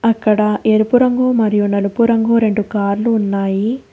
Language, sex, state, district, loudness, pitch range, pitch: Telugu, female, Telangana, Hyderabad, -15 LUFS, 205-230 Hz, 215 Hz